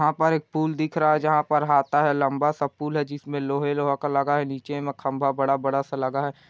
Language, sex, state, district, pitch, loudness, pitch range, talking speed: Hindi, male, Chhattisgarh, Korba, 145 Hz, -24 LUFS, 140-150 Hz, 260 wpm